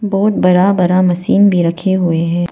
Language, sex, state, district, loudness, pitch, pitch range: Hindi, female, Arunachal Pradesh, Papum Pare, -12 LUFS, 185 Hz, 175-195 Hz